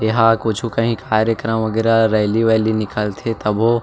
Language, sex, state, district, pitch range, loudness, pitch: Hindi, male, Chhattisgarh, Jashpur, 110-115 Hz, -17 LUFS, 110 Hz